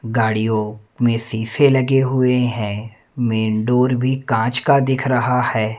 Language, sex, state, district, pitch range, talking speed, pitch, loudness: Hindi, male, Madhya Pradesh, Umaria, 110-130 Hz, 145 wpm, 120 Hz, -18 LUFS